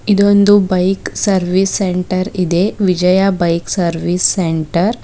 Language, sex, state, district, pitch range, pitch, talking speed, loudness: Kannada, female, Karnataka, Bidar, 175-195 Hz, 185 Hz, 130 wpm, -14 LUFS